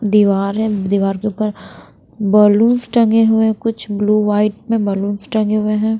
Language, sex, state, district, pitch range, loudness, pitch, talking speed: Hindi, female, Bihar, Patna, 205-220 Hz, -15 LUFS, 210 Hz, 170 wpm